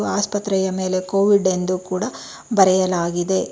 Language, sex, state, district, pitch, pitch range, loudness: Kannada, female, Karnataka, Bangalore, 190 Hz, 185-195 Hz, -19 LUFS